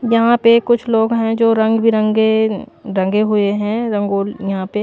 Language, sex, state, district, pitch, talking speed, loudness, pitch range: Hindi, female, Maharashtra, Washim, 220 Hz, 175 wpm, -15 LUFS, 205-230 Hz